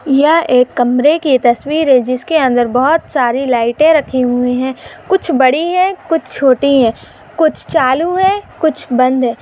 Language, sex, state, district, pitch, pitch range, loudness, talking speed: Hindi, female, Maharashtra, Pune, 265 Hz, 250-320 Hz, -12 LUFS, 165 wpm